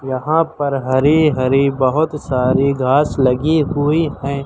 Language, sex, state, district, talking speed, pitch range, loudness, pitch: Hindi, male, Uttar Pradesh, Lucknow, 135 wpm, 130-150 Hz, -16 LUFS, 140 Hz